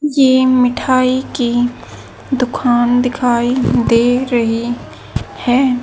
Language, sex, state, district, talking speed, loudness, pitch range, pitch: Hindi, female, Haryana, Jhajjar, 80 wpm, -14 LUFS, 240-260 Hz, 250 Hz